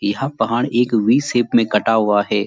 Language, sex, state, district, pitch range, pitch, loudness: Hindi, male, Uttarakhand, Uttarkashi, 105-120 Hz, 115 Hz, -17 LUFS